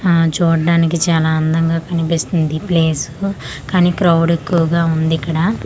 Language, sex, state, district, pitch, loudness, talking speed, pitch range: Telugu, female, Andhra Pradesh, Manyam, 165 Hz, -15 LUFS, 125 wpm, 160-170 Hz